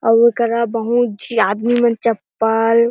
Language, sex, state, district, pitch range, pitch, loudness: Chhattisgarhi, female, Chhattisgarh, Jashpur, 225-235 Hz, 230 Hz, -16 LUFS